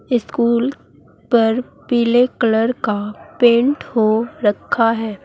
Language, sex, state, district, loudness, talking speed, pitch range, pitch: Hindi, female, Uttar Pradesh, Saharanpur, -17 LUFS, 105 wpm, 220-245 Hz, 235 Hz